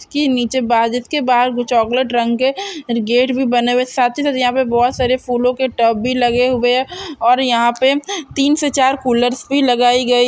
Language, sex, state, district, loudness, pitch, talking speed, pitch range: Hindi, female, Chhattisgarh, Bastar, -15 LUFS, 250 Hz, 210 wpm, 245-265 Hz